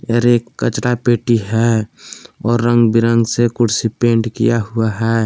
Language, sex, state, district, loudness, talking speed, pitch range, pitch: Hindi, male, Jharkhand, Palamu, -15 LUFS, 150 wpm, 115-120 Hz, 115 Hz